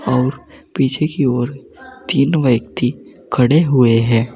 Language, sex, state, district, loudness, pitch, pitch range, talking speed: Hindi, male, Uttar Pradesh, Saharanpur, -16 LUFS, 130 Hz, 125-150 Hz, 125 wpm